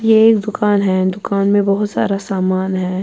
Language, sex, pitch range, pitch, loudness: Urdu, female, 190-210 Hz, 200 Hz, -15 LUFS